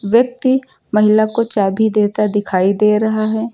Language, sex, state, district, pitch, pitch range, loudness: Hindi, female, Uttar Pradesh, Lucknow, 215 Hz, 210-230 Hz, -15 LUFS